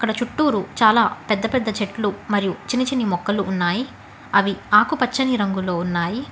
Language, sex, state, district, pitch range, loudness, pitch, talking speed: Telugu, female, Telangana, Hyderabad, 200-245 Hz, -20 LUFS, 210 Hz, 140 wpm